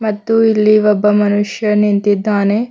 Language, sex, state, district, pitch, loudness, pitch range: Kannada, female, Karnataka, Bidar, 210 Hz, -13 LUFS, 205-215 Hz